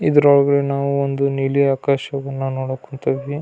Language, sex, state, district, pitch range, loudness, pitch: Kannada, male, Karnataka, Belgaum, 135-140 Hz, -19 LUFS, 140 Hz